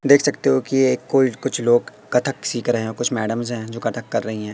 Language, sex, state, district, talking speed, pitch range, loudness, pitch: Hindi, female, Madhya Pradesh, Katni, 265 wpm, 115-135 Hz, -20 LUFS, 120 Hz